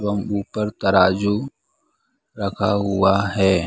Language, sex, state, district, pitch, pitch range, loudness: Hindi, male, Bihar, Saran, 100 Hz, 95-105 Hz, -20 LUFS